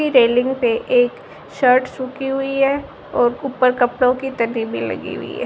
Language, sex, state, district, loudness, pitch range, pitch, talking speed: Hindi, female, Rajasthan, Barmer, -18 LUFS, 245-275 Hz, 260 Hz, 165 wpm